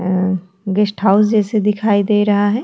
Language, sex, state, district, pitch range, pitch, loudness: Hindi, female, Chhattisgarh, Kabirdham, 195-210 Hz, 205 Hz, -15 LUFS